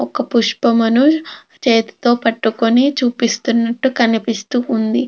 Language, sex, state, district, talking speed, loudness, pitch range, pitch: Telugu, female, Andhra Pradesh, Krishna, 85 wpm, -15 LUFS, 230-260 Hz, 235 Hz